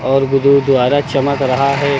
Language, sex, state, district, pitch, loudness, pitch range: Hindi, male, Uttar Pradesh, Lucknow, 140 Hz, -13 LUFS, 135-140 Hz